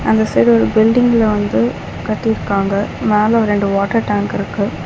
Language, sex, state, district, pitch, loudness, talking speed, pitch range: Tamil, female, Tamil Nadu, Chennai, 205 Hz, -15 LUFS, 135 wpm, 195-220 Hz